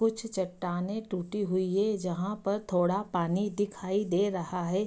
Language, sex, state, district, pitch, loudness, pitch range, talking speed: Hindi, female, Bihar, Madhepura, 195 Hz, -31 LUFS, 180-205 Hz, 160 wpm